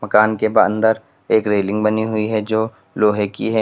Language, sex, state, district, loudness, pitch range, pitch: Hindi, male, Uttar Pradesh, Lalitpur, -18 LUFS, 105-110 Hz, 110 Hz